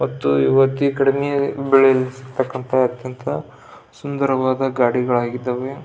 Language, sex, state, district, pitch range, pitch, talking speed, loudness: Kannada, male, Karnataka, Belgaum, 125-135 Hz, 130 Hz, 60 wpm, -19 LUFS